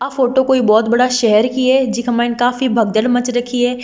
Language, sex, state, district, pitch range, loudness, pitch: Marwari, female, Rajasthan, Nagaur, 235-255 Hz, -14 LUFS, 245 Hz